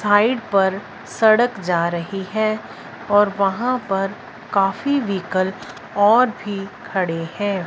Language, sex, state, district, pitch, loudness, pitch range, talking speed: Hindi, female, Punjab, Fazilka, 200 Hz, -20 LUFS, 190-220 Hz, 115 wpm